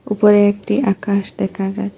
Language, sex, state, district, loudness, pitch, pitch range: Bengali, female, Assam, Hailakandi, -16 LUFS, 205 Hz, 195-210 Hz